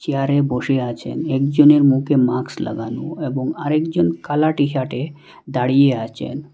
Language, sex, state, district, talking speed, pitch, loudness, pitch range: Bengali, male, Assam, Hailakandi, 120 wpm, 140 Hz, -18 LUFS, 130-150 Hz